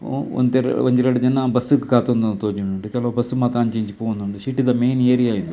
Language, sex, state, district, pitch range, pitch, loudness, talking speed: Tulu, male, Karnataka, Dakshina Kannada, 110-125 Hz, 125 Hz, -19 LUFS, 205 wpm